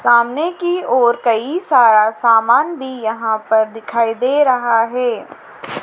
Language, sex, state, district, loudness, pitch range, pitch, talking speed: Hindi, female, Madhya Pradesh, Dhar, -15 LUFS, 225-260 Hz, 240 Hz, 135 wpm